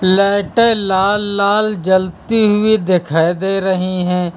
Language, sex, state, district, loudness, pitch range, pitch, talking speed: Hindi, male, Uttar Pradesh, Lucknow, -14 LUFS, 185-210 Hz, 195 Hz, 125 wpm